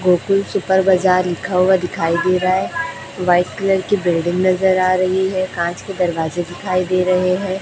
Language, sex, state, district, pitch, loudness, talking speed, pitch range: Hindi, female, Chhattisgarh, Raipur, 185 Hz, -17 LUFS, 190 wpm, 180-190 Hz